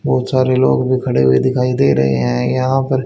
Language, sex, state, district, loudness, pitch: Hindi, male, Haryana, Charkhi Dadri, -15 LUFS, 125 Hz